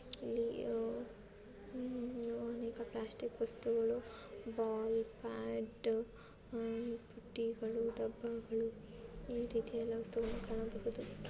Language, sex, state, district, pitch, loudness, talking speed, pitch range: Kannada, female, Karnataka, Chamarajanagar, 230 Hz, -41 LUFS, 75 wpm, 225-235 Hz